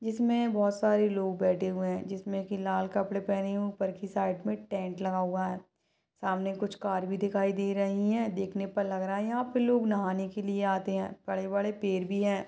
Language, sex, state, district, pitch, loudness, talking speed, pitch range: Hindi, female, Chhattisgarh, Balrampur, 195 Hz, -31 LUFS, 225 wpm, 190-205 Hz